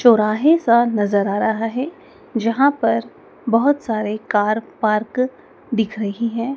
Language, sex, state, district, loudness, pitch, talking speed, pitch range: Hindi, female, Madhya Pradesh, Dhar, -19 LUFS, 230 Hz, 135 wpm, 215-255 Hz